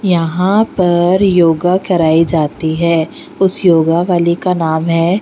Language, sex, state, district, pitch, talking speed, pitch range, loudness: Hindi, female, Bihar, Patna, 170 Hz, 140 wpm, 165-185 Hz, -12 LUFS